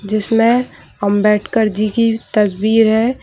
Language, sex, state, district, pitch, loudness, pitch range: Hindi, female, Bihar, Kishanganj, 220 Hz, -15 LUFS, 210-225 Hz